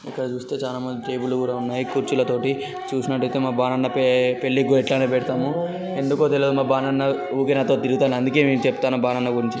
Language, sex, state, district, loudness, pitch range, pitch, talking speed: Telugu, male, Telangana, Karimnagar, -22 LUFS, 125-135 Hz, 130 Hz, 170 wpm